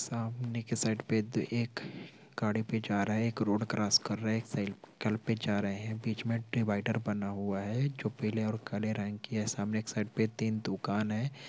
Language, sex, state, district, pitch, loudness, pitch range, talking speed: Hindi, male, Chhattisgarh, Bilaspur, 110 Hz, -34 LUFS, 105-115 Hz, 220 wpm